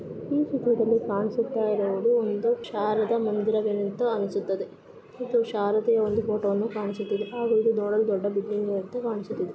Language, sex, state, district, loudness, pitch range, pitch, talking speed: Kannada, female, Karnataka, Shimoga, -26 LUFS, 205-230 Hz, 215 Hz, 130 wpm